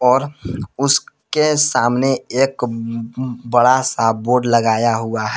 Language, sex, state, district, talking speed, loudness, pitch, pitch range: Hindi, male, Jharkhand, Palamu, 125 wpm, -17 LUFS, 125 Hz, 115-135 Hz